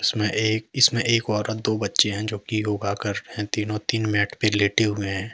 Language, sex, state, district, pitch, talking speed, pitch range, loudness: Hindi, male, Jharkhand, Deoghar, 105 Hz, 170 wpm, 105-110 Hz, -23 LUFS